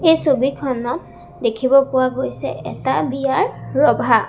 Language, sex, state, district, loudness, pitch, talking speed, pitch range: Assamese, female, Assam, Sonitpur, -18 LUFS, 265 Hz, 110 wpm, 255-275 Hz